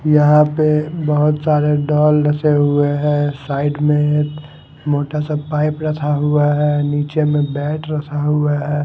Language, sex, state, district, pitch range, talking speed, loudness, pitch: Hindi, male, Haryana, Rohtak, 145-150 Hz, 140 wpm, -16 LUFS, 150 Hz